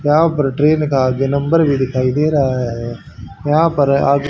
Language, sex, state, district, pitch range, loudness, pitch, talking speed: Hindi, male, Haryana, Charkhi Dadri, 130-150 Hz, -15 LUFS, 140 Hz, 195 wpm